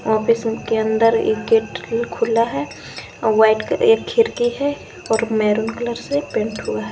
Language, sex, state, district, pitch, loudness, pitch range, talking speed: Hindi, female, Jharkhand, Garhwa, 225 Hz, -19 LUFS, 220-240 Hz, 165 wpm